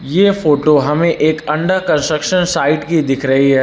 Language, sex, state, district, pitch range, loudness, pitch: Hindi, male, Uttar Pradesh, Lucknow, 145-170 Hz, -14 LUFS, 155 Hz